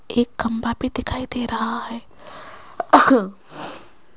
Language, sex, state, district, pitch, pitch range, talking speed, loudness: Hindi, female, Rajasthan, Jaipur, 235 Hz, 230-250 Hz, 100 wpm, -20 LUFS